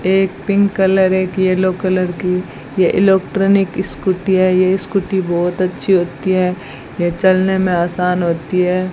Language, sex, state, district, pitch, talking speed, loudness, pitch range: Hindi, female, Rajasthan, Bikaner, 185 Hz, 155 wpm, -15 LUFS, 180-190 Hz